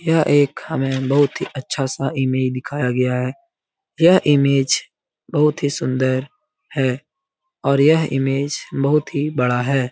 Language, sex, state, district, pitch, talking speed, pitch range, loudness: Hindi, male, Bihar, Lakhisarai, 140 Hz, 140 wpm, 130-155 Hz, -19 LUFS